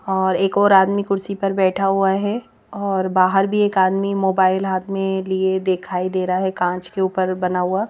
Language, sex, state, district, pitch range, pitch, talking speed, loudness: Hindi, female, Madhya Pradesh, Bhopal, 185-195 Hz, 190 Hz, 205 wpm, -19 LUFS